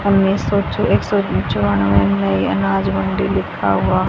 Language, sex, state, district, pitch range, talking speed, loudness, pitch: Hindi, female, Haryana, Rohtak, 95-115 Hz, 60 wpm, -17 LUFS, 100 Hz